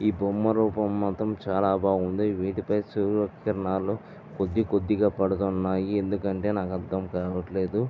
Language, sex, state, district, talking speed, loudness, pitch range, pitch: Telugu, male, Andhra Pradesh, Visakhapatnam, 115 wpm, -27 LUFS, 95-105 Hz, 100 Hz